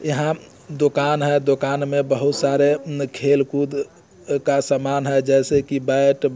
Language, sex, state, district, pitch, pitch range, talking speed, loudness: Hindi, male, Bihar, Muzaffarpur, 140 Hz, 140-145 Hz, 150 wpm, -20 LUFS